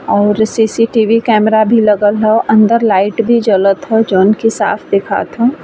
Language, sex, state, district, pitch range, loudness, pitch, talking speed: Bhojpuri, female, Uttar Pradesh, Ghazipur, 205-230 Hz, -11 LUFS, 220 Hz, 180 wpm